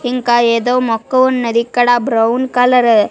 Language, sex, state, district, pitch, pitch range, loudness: Telugu, female, Telangana, Karimnagar, 245 Hz, 230-250 Hz, -13 LUFS